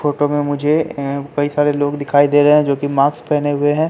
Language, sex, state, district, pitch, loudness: Hindi, male, Bihar, Katihar, 145 Hz, -16 LUFS